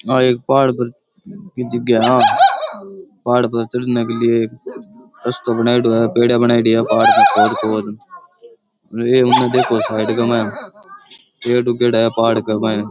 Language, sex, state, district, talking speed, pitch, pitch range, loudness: Rajasthani, male, Rajasthan, Churu, 155 wpm, 120 Hz, 115-175 Hz, -15 LUFS